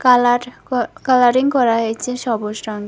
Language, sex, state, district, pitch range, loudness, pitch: Bengali, female, Tripura, West Tripura, 230-255 Hz, -17 LUFS, 245 Hz